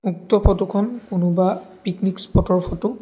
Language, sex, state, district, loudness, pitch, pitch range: Assamese, male, Assam, Sonitpur, -20 LUFS, 190 Hz, 185-205 Hz